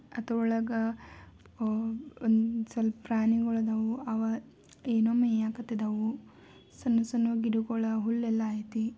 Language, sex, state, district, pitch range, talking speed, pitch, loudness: Kannada, female, Karnataka, Belgaum, 225-230 Hz, 95 wpm, 225 Hz, -30 LUFS